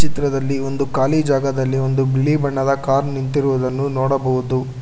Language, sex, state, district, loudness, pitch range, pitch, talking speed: Kannada, male, Karnataka, Bangalore, -19 LUFS, 130-140 Hz, 135 Hz, 125 wpm